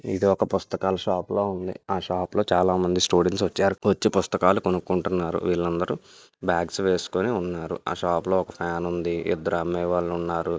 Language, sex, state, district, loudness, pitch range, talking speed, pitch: Telugu, male, Andhra Pradesh, Visakhapatnam, -25 LUFS, 85-95 Hz, 170 wpm, 90 Hz